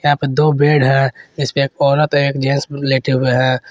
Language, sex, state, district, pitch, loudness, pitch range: Hindi, male, Jharkhand, Garhwa, 140 Hz, -15 LUFS, 135-145 Hz